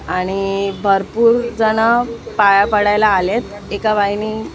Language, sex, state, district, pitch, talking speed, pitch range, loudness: Marathi, female, Maharashtra, Mumbai Suburban, 210 Hz, 120 wpm, 200-220 Hz, -15 LUFS